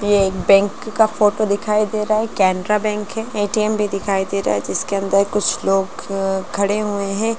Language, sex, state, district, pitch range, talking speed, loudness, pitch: Hindi, female, Bihar, Gaya, 195-215 Hz, 205 wpm, -18 LUFS, 205 Hz